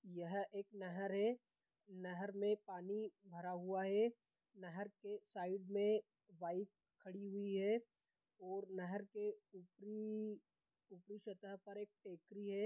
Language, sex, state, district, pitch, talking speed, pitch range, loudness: Hindi, male, Chhattisgarh, Bilaspur, 200 Hz, 135 wpm, 190-210 Hz, -45 LUFS